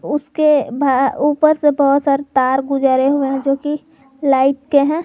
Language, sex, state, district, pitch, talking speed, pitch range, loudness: Hindi, female, Jharkhand, Garhwa, 280 Hz, 155 wpm, 270-295 Hz, -15 LUFS